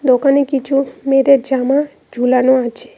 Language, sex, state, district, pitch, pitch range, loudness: Bengali, female, West Bengal, Cooch Behar, 270 Hz, 255-275 Hz, -14 LUFS